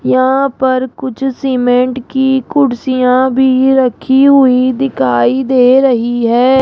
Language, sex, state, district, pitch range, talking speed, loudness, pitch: Hindi, female, Rajasthan, Jaipur, 250-265 Hz, 120 wpm, -11 LUFS, 260 Hz